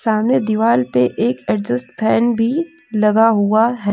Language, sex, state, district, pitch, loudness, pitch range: Hindi, female, Jharkhand, Deoghar, 220 Hz, -16 LUFS, 205-235 Hz